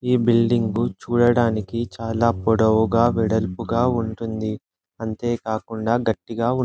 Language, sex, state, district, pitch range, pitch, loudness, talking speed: Telugu, male, Andhra Pradesh, Anantapur, 110-120 Hz, 115 Hz, -21 LUFS, 110 wpm